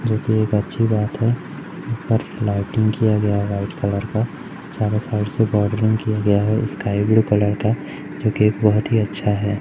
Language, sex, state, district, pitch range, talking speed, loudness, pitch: Hindi, male, Madhya Pradesh, Umaria, 105-110 Hz, 180 wpm, -20 LUFS, 105 Hz